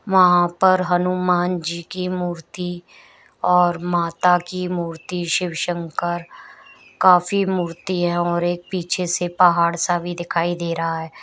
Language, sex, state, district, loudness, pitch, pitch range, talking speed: Hindi, female, Uttar Pradesh, Shamli, -20 LUFS, 175 Hz, 175-180 Hz, 145 wpm